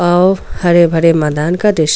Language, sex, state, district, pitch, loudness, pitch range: Hindi, female, Goa, North and South Goa, 170 Hz, -12 LUFS, 160-180 Hz